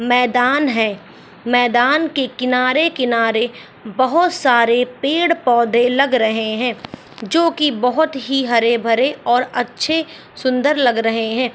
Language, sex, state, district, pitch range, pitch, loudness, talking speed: Hindi, female, Bihar, Saharsa, 235-275 Hz, 250 Hz, -16 LUFS, 120 wpm